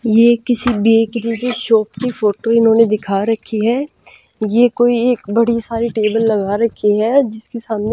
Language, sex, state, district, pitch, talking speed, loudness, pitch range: Hindi, female, Punjab, Pathankot, 230 Hz, 165 wpm, -15 LUFS, 220-235 Hz